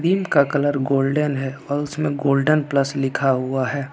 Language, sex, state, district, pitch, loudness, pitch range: Hindi, male, Jharkhand, Ranchi, 140 Hz, -20 LUFS, 135-145 Hz